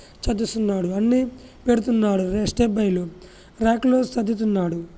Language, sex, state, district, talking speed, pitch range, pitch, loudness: Telugu, male, Telangana, Nalgonda, 70 wpm, 185-235 Hz, 215 Hz, -22 LUFS